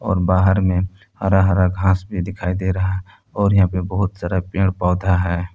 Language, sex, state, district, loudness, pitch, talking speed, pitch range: Hindi, male, Jharkhand, Palamu, -19 LUFS, 95 Hz, 205 wpm, 90-95 Hz